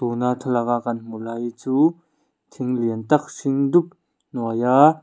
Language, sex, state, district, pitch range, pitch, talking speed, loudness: Mizo, male, Mizoram, Aizawl, 120-150 Hz, 125 Hz, 165 wpm, -21 LUFS